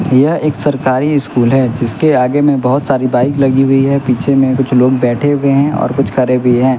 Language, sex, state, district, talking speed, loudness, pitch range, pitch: Hindi, male, Bihar, West Champaran, 230 wpm, -12 LUFS, 125-140 Hz, 135 Hz